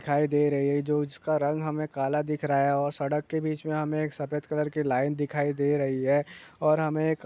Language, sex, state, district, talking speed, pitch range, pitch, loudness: Hindi, male, West Bengal, Purulia, 255 wpm, 145-155 Hz, 150 Hz, -27 LUFS